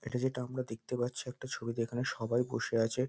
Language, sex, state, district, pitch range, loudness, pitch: Bengali, male, West Bengal, North 24 Parganas, 115-125 Hz, -35 LUFS, 125 Hz